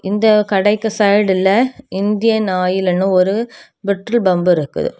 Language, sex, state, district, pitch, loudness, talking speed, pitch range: Tamil, female, Tamil Nadu, Kanyakumari, 200 Hz, -15 LUFS, 120 wpm, 190-220 Hz